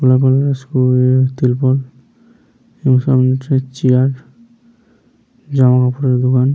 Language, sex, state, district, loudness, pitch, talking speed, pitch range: Bengali, male, West Bengal, Paschim Medinipur, -14 LUFS, 130 Hz, 100 wpm, 130-140 Hz